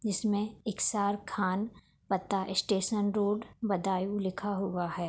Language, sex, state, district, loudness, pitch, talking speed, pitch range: Hindi, female, Uttar Pradesh, Budaun, -32 LUFS, 200 Hz, 130 wpm, 190-210 Hz